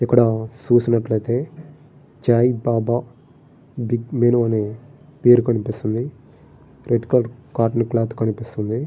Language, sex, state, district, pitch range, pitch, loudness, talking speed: Telugu, male, Andhra Pradesh, Srikakulam, 115-130 Hz, 120 Hz, -20 LUFS, 95 wpm